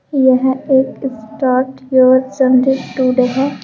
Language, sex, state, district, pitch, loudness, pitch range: Hindi, female, Uttar Pradesh, Shamli, 260 Hz, -14 LUFS, 255-265 Hz